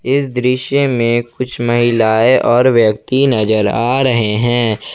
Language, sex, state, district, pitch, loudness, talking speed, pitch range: Hindi, male, Jharkhand, Ranchi, 120 Hz, -13 LUFS, 135 wpm, 110-130 Hz